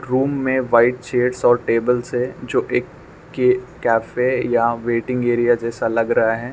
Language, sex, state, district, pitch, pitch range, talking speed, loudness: Hindi, male, Arunachal Pradesh, Lower Dibang Valley, 125 Hz, 115-125 Hz, 165 wpm, -19 LUFS